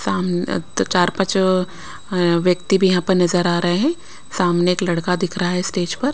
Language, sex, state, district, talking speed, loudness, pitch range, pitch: Hindi, female, Bihar, West Champaran, 185 wpm, -18 LUFS, 175-190 Hz, 180 Hz